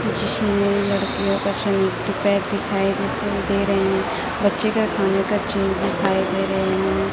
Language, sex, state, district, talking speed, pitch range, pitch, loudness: Hindi, female, Chhattisgarh, Raipur, 125 wpm, 195-200 Hz, 195 Hz, -21 LUFS